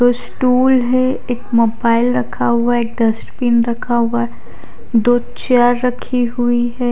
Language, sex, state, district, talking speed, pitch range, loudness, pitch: Hindi, female, Odisha, Khordha, 155 wpm, 235-250 Hz, -16 LUFS, 240 Hz